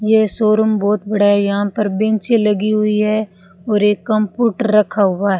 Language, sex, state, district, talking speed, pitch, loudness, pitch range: Hindi, female, Rajasthan, Bikaner, 190 wpm, 210 Hz, -15 LUFS, 205-215 Hz